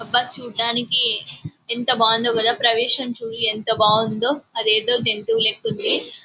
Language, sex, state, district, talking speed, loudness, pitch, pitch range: Telugu, female, Andhra Pradesh, Anantapur, 125 wpm, -14 LUFS, 230 Hz, 220-240 Hz